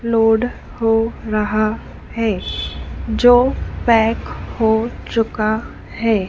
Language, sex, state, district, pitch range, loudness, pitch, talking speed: Hindi, female, Madhya Pradesh, Dhar, 220-230 Hz, -18 LUFS, 225 Hz, 85 wpm